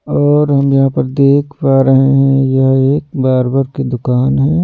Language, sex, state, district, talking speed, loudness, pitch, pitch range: Hindi, male, Delhi, New Delhi, 180 wpm, -12 LUFS, 135 Hz, 130-140 Hz